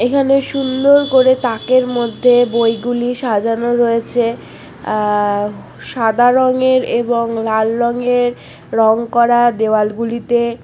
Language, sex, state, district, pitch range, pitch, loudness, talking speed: Bengali, female, West Bengal, Kolkata, 230-250 Hz, 240 Hz, -14 LUFS, 120 wpm